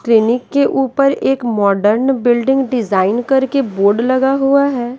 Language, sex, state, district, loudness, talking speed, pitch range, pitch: Hindi, female, Bihar, West Champaran, -14 LUFS, 145 wpm, 225-270 Hz, 255 Hz